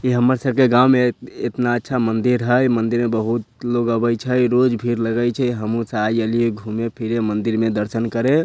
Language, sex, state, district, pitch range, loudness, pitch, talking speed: Bhojpuri, male, Bihar, Sitamarhi, 115-125 Hz, -19 LUFS, 120 Hz, 215 wpm